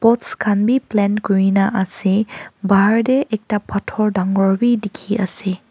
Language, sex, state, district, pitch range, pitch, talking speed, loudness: Nagamese, female, Nagaland, Kohima, 195-220 Hz, 205 Hz, 160 wpm, -18 LUFS